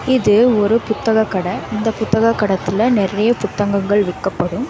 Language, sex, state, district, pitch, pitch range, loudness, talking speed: Tamil, female, Karnataka, Bangalore, 210 Hz, 200-225 Hz, -16 LUFS, 130 wpm